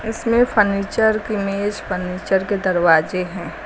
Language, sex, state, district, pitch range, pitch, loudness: Hindi, female, Uttar Pradesh, Lucknow, 180-215 Hz, 200 Hz, -19 LUFS